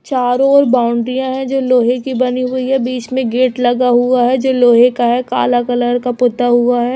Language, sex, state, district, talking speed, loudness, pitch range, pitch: Hindi, female, Chhattisgarh, Raipur, 225 wpm, -13 LUFS, 245-255 Hz, 250 Hz